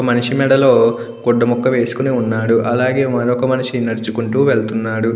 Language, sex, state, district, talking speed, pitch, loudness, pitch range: Telugu, male, Andhra Pradesh, Krishna, 130 wpm, 120 Hz, -15 LUFS, 115-130 Hz